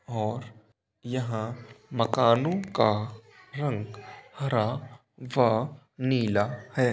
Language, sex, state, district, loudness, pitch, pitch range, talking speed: Hindi, male, Bihar, Begusarai, -28 LUFS, 120 Hz, 110-130 Hz, 80 wpm